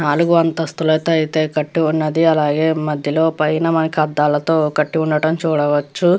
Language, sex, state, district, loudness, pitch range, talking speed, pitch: Telugu, female, Andhra Pradesh, Krishna, -17 LUFS, 150-160 Hz, 135 wpm, 155 Hz